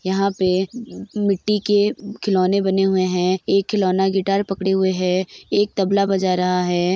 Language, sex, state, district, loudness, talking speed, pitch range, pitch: Hindi, female, Uttar Pradesh, Jyotiba Phule Nagar, -19 LUFS, 165 wpm, 185-200 Hz, 195 Hz